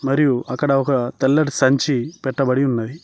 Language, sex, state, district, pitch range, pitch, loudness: Telugu, male, Telangana, Mahabubabad, 125-140 Hz, 135 Hz, -19 LUFS